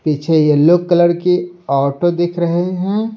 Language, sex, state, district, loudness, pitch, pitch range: Hindi, male, Bihar, Patna, -15 LUFS, 175 Hz, 155-180 Hz